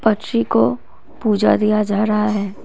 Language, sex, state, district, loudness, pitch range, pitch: Hindi, female, Assam, Kamrup Metropolitan, -17 LUFS, 205-215 Hz, 210 Hz